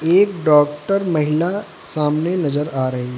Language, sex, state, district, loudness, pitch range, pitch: Hindi, male, Uttar Pradesh, Lucknow, -18 LUFS, 150-180 Hz, 155 Hz